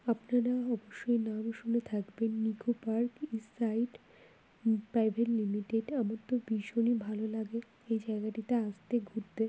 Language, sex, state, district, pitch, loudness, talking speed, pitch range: Bengali, female, West Bengal, Kolkata, 225 Hz, -34 LUFS, 135 wpm, 220-235 Hz